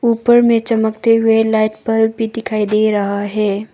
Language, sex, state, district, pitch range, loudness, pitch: Hindi, female, Arunachal Pradesh, Papum Pare, 215-230 Hz, -15 LUFS, 220 Hz